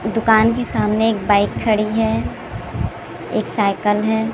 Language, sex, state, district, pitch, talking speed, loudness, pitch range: Hindi, female, Chhattisgarh, Raipur, 220 Hz, 150 wpm, -18 LUFS, 210-225 Hz